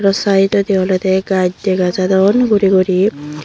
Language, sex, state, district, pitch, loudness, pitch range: Chakma, female, Tripura, Unakoti, 190 Hz, -14 LUFS, 185-195 Hz